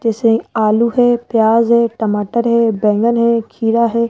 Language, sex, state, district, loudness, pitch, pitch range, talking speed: Hindi, female, Rajasthan, Jaipur, -14 LUFS, 230 Hz, 225-235 Hz, 160 wpm